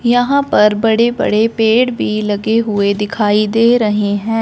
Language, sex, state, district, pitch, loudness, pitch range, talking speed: Hindi, female, Punjab, Fazilka, 220 Hz, -13 LUFS, 210-230 Hz, 165 wpm